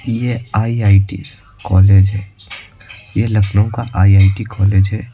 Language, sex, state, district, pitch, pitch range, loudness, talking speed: Hindi, male, Uttar Pradesh, Lucknow, 100 Hz, 95-110 Hz, -14 LUFS, 115 wpm